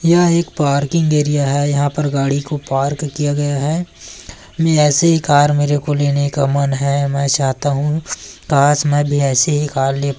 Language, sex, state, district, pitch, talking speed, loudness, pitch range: Hindi, male, Chhattisgarh, Korba, 145 Hz, 190 wpm, -16 LUFS, 140-150 Hz